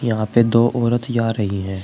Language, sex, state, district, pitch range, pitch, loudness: Hindi, male, Uttar Pradesh, Shamli, 105-120 Hz, 115 Hz, -18 LUFS